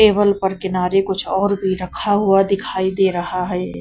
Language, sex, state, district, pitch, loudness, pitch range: Hindi, female, Punjab, Kapurthala, 190 Hz, -18 LUFS, 185-195 Hz